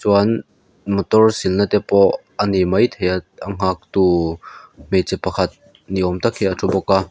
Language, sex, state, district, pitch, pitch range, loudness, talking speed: Mizo, male, Mizoram, Aizawl, 95 Hz, 90-100 Hz, -18 LUFS, 185 wpm